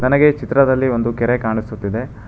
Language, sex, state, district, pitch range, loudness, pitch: Kannada, male, Karnataka, Bangalore, 110-130 Hz, -17 LUFS, 120 Hz